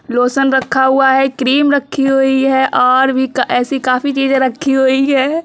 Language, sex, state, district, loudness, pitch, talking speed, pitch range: Hindi, female, Uttar Pradesh, Budaun, -13 LUFS, 265 Hz, 175 wpm, 260-270 Hz